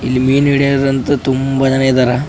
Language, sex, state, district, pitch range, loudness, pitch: Kannada, male, Karnataka, Raichur, 130-140 Hz, -13 LUFS, 135 Hz